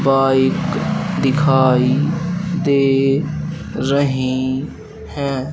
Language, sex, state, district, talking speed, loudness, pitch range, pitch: Hindi, male, Madhya Pradesh, Dhar, 55 wpm, -17 LUFS, 130-155 Hz, 135 Hz